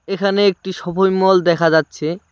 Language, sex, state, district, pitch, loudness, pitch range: Bengali, male, West Bengal, Cooch Behar, 190 Hz, -16 LUFS, 170-195 Hz